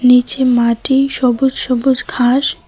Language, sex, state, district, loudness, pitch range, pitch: Bengali, female, West Bengal, Cooch Behar, -14 LUFS, 245-265 Hz, 255 Hz